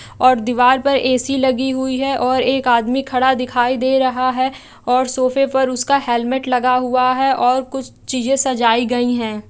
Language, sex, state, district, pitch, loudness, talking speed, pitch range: Hindi, female, Bihar, Gaya, 255 Hz, -16 LUFS, 185 wpm, 250-265 Hz